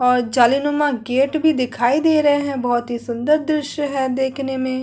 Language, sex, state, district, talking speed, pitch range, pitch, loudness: Hindi, female, Uttar Pradesh, Hamirpur, 200 wpm, 250-290 Hz, 265 Hz, -18 LUFS